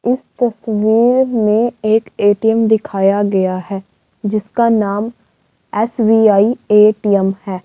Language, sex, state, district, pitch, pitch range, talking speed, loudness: Hindi, female, Uttar Pradesh, Varanasi, 215 Hz, 200-225 Hz, 100 wpm, -14 LUFS